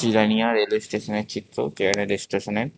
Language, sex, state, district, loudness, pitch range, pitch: Bengali, male, Tripura, West Tripura, -23 LUFS, 100-110 Hz, 105 Hz